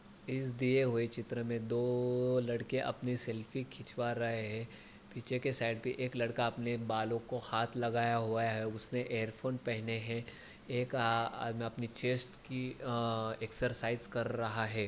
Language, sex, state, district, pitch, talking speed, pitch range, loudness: Hindi, male, Maharashtra, Aurangabad, 120 Hz, 155 wpm, 115-125 Hz, -34 LUFS